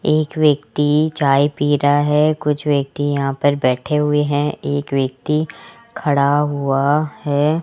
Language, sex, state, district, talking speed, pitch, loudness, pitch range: Hindi, male, Rajasthan, Jaipur, 140 wpm, 145 Hz, -17 LUFS, 140-150 Hz